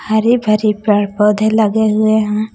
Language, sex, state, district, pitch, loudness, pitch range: Hindi, female, Jharkhand, Palamu, 215 Hz, -13 LUFS, 210-220 Hz